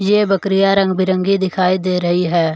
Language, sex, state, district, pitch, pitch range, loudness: Hindi, male, Jharkhand, Deoghar, 185 Hz, 180-195 Hz, -15 LUFS